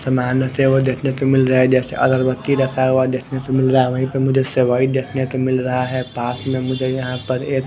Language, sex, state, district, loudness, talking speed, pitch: Hindi, male, Bihar, West Champaran, -18 LUFS, 250 wpm, 130 Hz